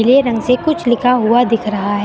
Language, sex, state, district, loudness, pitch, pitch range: Hindi, female, Uttar Pradesh, Lucknow, -14 LUFS, 240 Hz, 225-250 Hz